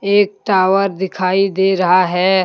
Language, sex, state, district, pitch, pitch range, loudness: Hindi, male, Jharkhand, Deoghar, 190 Hz, 185-195 Hz, -15 LUFS